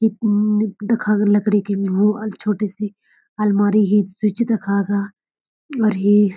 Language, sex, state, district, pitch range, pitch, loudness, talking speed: Garhwali, female, Uttarakhand, Uttarkashi, 205-215 Hz, 210 Hz, -19 LUFS, 160 wpm